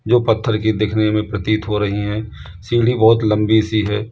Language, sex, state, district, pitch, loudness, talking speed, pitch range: Hindi, male, Uttar Pradesh, Lalitpur, 110 Hz, -17 LUFS, 205 wpm, 105-110 Hz